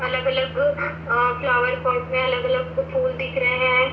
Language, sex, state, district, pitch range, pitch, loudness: Hindi, female, Chhattisgarh, Bilaspur, 245-255 Hz, 255 Hz, -21 LUFS